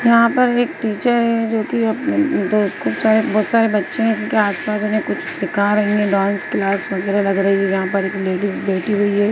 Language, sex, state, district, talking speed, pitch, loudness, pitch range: Hindi, female, Uttarakhand, Uttarkashi, 220 wpm, 210 Hz, -18 LUFS, 195-225 Hz